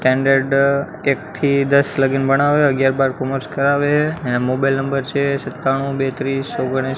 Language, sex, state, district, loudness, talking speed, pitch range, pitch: Gujarati, male, Gujarat, Gandhinagar, -17 LUFS, 155 wpm, 135-140 Hz, 135 Hz